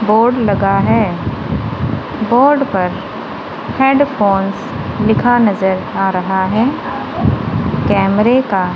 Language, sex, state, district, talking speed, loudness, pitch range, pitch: Hindi, female, Punjab, Kapurthala, 90 wpm, -14 LUFS, 195-245 Hz, 210 Hz